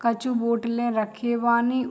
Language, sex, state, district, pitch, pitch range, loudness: Hindi, female, Bihar, Saharsa, 235 Hz, 235-240 Hz, -24 LUFS